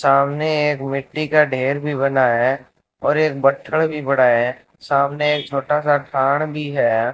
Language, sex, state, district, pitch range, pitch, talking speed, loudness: Hindi, male, Rajasthan, Bikaner, 135-150 Hz, 140 Hz, 170 wpm, -18 LUFS